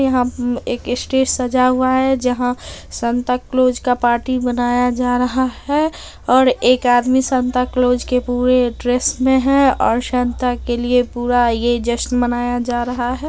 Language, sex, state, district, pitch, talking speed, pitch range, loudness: Hindi, female, Bihar, Darbhanga, 250 Hz, 160 wpm, 245-255 Hz, -17 LUFS